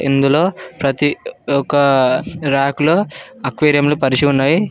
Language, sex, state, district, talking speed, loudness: Telugu, male, Telangana, Mahabubabad, 115 wpm, -15 LUFS